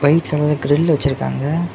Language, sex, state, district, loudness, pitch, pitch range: Tamil, male, Tamil Nadu, Kanyakumari, -17 LUFS, 150 Hz, 140-155 Hz